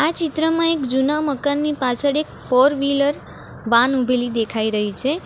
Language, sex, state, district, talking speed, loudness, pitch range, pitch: Gujarati, female, Gujarat, Valsad, 160 wpm, -19 LUFS, 250-300 Hz, 280 Hz